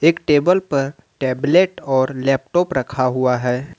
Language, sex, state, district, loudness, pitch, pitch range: Hindi, male, Jharkhand, Ranchi, -18 LUFS, 135 Hz, 130-165 Hz